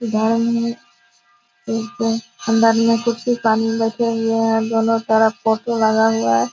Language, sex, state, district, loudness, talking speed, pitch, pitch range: Hindi, female, Bihar, Purnia, -18 LUFS, 145 wpm, 225 Hz, 220-230 Hz